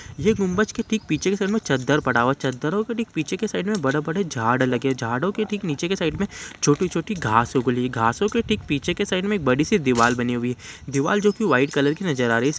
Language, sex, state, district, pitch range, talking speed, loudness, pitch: Hindi, male, Bihar, Saran, 130-205 Hz, 280 wpm, -22 LUFS, 150 Hz